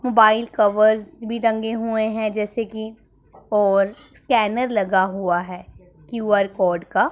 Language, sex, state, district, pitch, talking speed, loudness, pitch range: Hindi, female, Punjab, Pathankot, 215 Hz, 135 wpm, -20 LUFS, 195-225 Hz